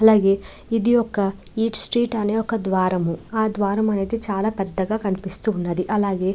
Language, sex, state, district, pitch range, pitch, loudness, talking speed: Telugu, female, Andhra Pradesh, Krishna, 195-220 Hz, 205 Hz, -20 LUFS, 140 wpm